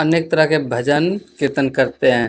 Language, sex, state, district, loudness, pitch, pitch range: Hindi, male, Bihar, Bhagalpur, -17 LUFS, 145 Hz, 135-160 Hz